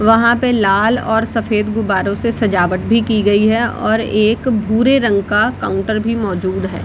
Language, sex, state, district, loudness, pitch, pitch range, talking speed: Hindi, female, Bihar, Samastipur, -15 LUFS, 220 Hz, 205-230 Hz, 185 wpm